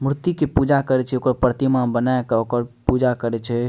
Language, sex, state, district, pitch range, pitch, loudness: Maithili, male, Bihar, Madhepura, 120-135 Hz, 125 Hz, -20 LUFS